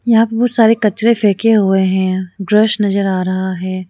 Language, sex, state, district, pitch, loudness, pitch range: Hindi, female, Arunachal Pradesh, Lower Dibang Valley, 205 Hz, -14 LUFS, 190-225 Hz